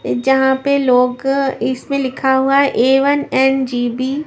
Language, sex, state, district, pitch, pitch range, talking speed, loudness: Hindi, female, Maharashtra, Washim, 265 Hz, 255-275 Hz, 170 wpm, -15 LUFS